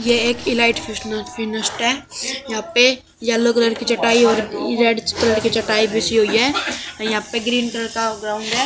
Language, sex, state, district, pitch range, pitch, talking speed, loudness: Hindi, male, Haryana, Jhajjar, 220-240 Hz, 230 Hz, 145 wpm, -18 LUFS